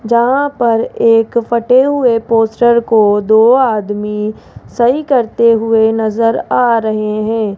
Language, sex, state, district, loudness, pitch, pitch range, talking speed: Hindi, female, Rajasthan, Jaipur, -12 LUFS, 230 Hz, 220-240 Hz, 125 wpm